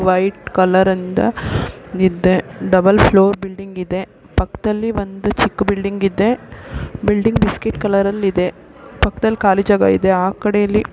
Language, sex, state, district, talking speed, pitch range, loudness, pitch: Kannada, female, Karnataka, Gulbarga, 125 wpm, 185-210 Hz, -16 LUFS, 195 Hz